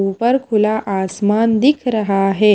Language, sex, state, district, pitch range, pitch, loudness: Hindi, female, Himachal Pradesh, Shimla, 195-230 Hz, 215 Hz, -16 LUFS